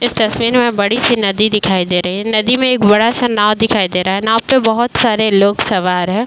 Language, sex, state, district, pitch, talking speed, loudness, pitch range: Hindi, female, Uttar Pradesh, Varanasi, 215 Hz, 260 wpm, -13 LUFS, 200-235 Hz